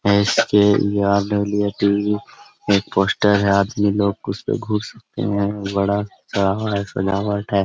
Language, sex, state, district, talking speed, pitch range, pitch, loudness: Hindi, male, Jharkhand, Sahebganj, 100 wpm, 100-105 Hz, 100 Hz, -19 LUFS